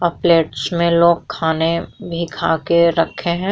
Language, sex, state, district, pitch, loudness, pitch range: Hindi, female, Uttar Pradesh, Muzaffarnagar, 170 Hz, -17 LUFS, 165-170 Hz